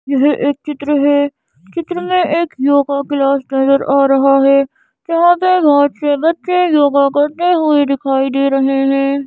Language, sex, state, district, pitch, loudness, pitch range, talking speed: Hindi, female, Madhya Pradesh, Bhopal, 285 Hz, -13 LUFS, 275-325 Hz, 160 wpm